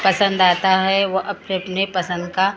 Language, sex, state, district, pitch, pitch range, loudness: Hindi, female, Maharashtra, Gondia, 190 Hz, 185-195 Hz, -18 LUFS